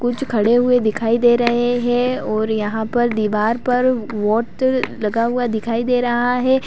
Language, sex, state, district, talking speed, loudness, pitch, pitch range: Hindi, female, Uttar Pradesh, Lalitpur, 160 wpm, -18 LUFS, 240 Hz, 220-245 Hz